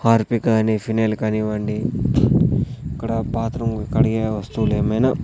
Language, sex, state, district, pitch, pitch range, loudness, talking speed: Telugu, male, Andhra Pradesh, Sri Satya Sai, 110 Hz, 110-115 Hz, -20 LUFS, 105 wpm